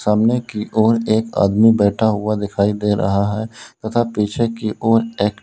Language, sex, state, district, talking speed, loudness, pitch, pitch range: Hindi, male, Uttar Pradesh, Lalitpur, 175 wpm, -17 LUFS, 110 Hz, 105-115 Hz